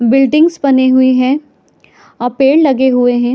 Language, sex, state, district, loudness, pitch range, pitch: Hindi, female, Chhattisgarh, Bilaspur, -11 LUFS, 250-280 Hz, 260 Hz